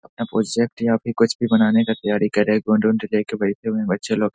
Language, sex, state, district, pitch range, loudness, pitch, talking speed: Hindi, male, Bihar, Saharsa, 105-115 Hz, -20 LUFS, 110 Hz, 275 wpm